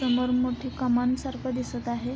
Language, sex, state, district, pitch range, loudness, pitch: Marathi, female, Maharashtra, Sindhudurg, 245-255 Hz, -27 LUFS, 250 Hz